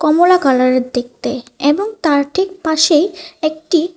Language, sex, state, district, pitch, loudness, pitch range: Bengali, female, Tripura, West Tripura, 310 Hz, -15 LUFS, 270-345 Hz